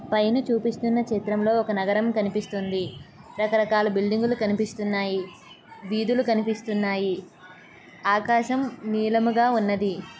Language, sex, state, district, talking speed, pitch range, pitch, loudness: Telugu, female, Andhra Pradesh, Srikakulam, 90 wpm, 200-230 Hz, 215 Hz, -24 LUFS